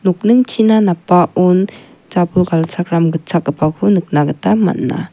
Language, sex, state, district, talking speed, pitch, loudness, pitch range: Garo, female, Meghalaya, West Garo Hills, 95 wpm, 180 Hz, -14 LUFS, 165-205 Hz